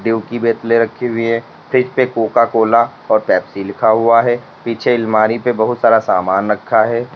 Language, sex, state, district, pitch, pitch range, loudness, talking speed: Hindi, male, Uttar Pradesh, Lalitpur, 115 Hz, 110-120 Hz, -14 LUFS, 165 wpm